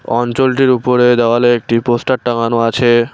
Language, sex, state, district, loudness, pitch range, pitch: Bengali, male, West Bengal, Cooch Behar, -13 LUFS, 115-125 Hz, 120 Hz